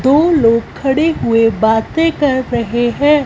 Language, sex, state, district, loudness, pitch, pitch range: Hindi, female, Punjab, Fazilka, -13 LUFS, 260 Hz, 230-300 Hz